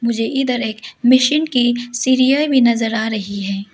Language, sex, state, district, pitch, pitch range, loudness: Hindi, female, Arunachal Pradesh, Lower Dibang Valley, 240 Hz, 220-255 Hz, -16 LUFS